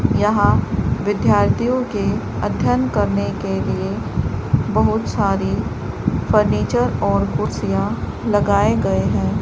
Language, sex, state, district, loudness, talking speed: Hindi, male, Rajasthan, Bikaner, -19 LUFS, 95 wpm